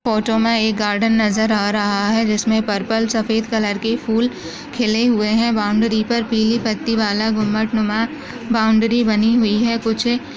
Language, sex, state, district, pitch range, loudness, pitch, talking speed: Hindi, female, Goa, North and South Goa, 215-230 Hz, -17 LUFS, 225 Hz, 155 wpm